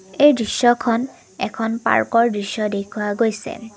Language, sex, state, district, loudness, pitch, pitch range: Assamese, female, Assam, Kamrup Metropolitan, -19 LUFS, 225 Hz, 210-235 Hz